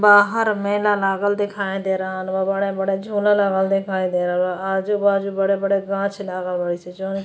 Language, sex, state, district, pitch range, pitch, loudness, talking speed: Bhojpuri, female, Uttar Pradesh, Gorakhpur, 190-205 Hz, 195 Hz, -20 LUFS, 180 wpm